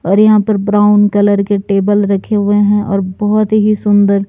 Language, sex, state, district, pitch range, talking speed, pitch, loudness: Hindi, male, Himachal Pradesh, Shimla, 200-210 Hz, 195 wpm, 205 Hz, -11 LUFS